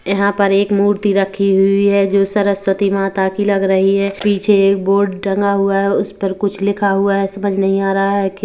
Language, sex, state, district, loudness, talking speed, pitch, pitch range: Hindi, female, Chhattisgarh, Kabirdham, -15 LUFS, 215 wpm, 195 Hz, 195-200 Hz